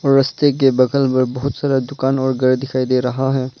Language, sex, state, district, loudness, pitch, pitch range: Hindi, male, Arunachal Pradesh, Lower Dibang Valley, -17 LUFS, 130 Hz, 130-135 Hz